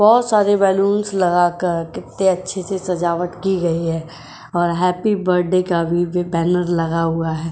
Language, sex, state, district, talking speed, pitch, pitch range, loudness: Hindi, female, Uttar Pradesh, Jyotiba Phule Nagar, 150 wpm, 180 Hz, 170-190 Hz, -18 LUFS